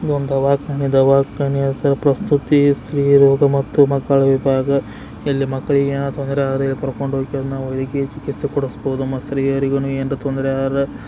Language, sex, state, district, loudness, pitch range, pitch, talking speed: Kannada, male, Karnataka, Belgaum, -18 LUFS, 135-140 Hz, 140 Hz, 135 wpm